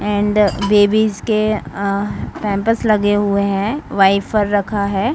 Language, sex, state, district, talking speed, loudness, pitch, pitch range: Hindi, female, Jharkhand, Sahebganj, 115 wpm, -16 LUFS, 205 Hz, 200-215 Hz